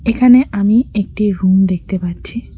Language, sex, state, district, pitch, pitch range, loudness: Bengali, female, West Bengal, Cooch Behar, 205 Hz, 190-235 Hz, -14 LUFS